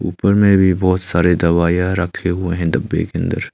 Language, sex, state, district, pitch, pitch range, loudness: Hindi, male, Arunachal Pradesh, Longding, 90 Hz, 85-95 Hz, -16 LUFS